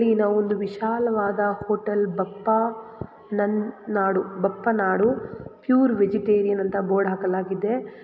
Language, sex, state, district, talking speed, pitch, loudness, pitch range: Kannada, female, Karnataka, Raichur, 95 wpm, 205 Hz, -23 LUFS, 195-220 Hz